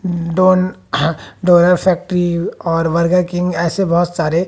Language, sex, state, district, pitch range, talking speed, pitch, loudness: Hindi, female, Haryana, Jhajjar, 170-180 Hz, 120 wpm, 175 Hz, -15 LUFS